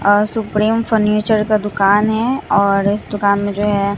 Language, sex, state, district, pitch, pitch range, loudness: Hindi, female, Bihar, Katihar, 210 Hz, 200-220 Hz, -15 LUFS